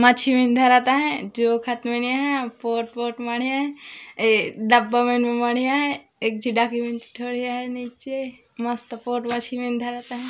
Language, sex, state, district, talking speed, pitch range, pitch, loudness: Chhattisgarhi, female, Chhattisgarh, Raigarh, 175 wpm, 235-250 Hz, 245 Hz, -22 LUFS